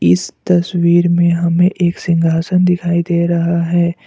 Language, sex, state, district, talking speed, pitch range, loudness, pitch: Hindi, male, Assam, Kamrup Metropolitan, 145 wpm, 170-175 Hz, -14 LUFS, 170 Hz